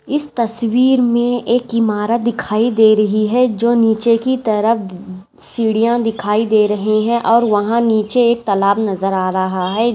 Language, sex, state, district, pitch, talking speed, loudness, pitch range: Hindi, female, Maharashtra, Aurangabad, 225 Hz, 165 wpm, -15 LUFS, 210-235 Hz